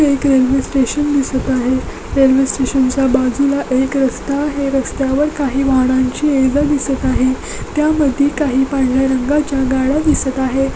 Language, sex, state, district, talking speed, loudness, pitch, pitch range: Marathi, female, Maharashtra, Dhule, 145 wpm, -15 LUFS, 270 Hz, 260-285 Hz